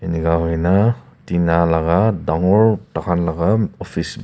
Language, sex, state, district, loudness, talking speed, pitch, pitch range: Nagamese, male, Nagaland, Kohima, -17 LUFS, 125 wpm, 85 Hz, 85-100 Hz